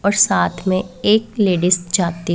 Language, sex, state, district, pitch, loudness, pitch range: Hindi, female, Punjab, Pathankot, 185 Hz, -17 LUFS, 175-205 Hz